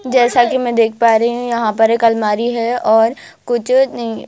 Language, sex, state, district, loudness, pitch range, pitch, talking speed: Hindi, female, Bihar, Katihar, -14 LUFS, 225-245 Hz, 235 Hz, 210 wpm